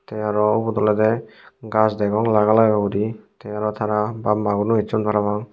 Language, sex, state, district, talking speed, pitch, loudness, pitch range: Chakma, male, Tripura, Unakoti, 175 wpm, 105 Hz, -20 LUFS, 105-110 Hz